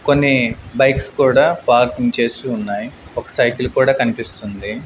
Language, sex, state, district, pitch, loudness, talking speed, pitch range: Telugu, male, Andhra Pradesh, Manyam, 120 Hz, -16 LUFS, 125 wpm, 115-130 Hz